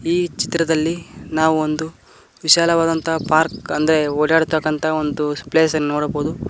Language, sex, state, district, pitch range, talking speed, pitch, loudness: Kannada, male, Karnataka, Koppal, 150-165 Hz, 110 wpm, 160 Hz, -18 LUFS